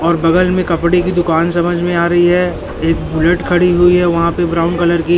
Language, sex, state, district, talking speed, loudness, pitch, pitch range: Hindi, male, Madhya Pradesh, Katni, 245 wpm, -13 LUFS, 175 Hz, 170-175 Hz